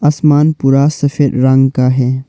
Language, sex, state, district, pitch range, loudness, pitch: Hindi, male, Arunachal Pradesh, Longding, 130-150 Hz, -11 LUFS, 140 Hz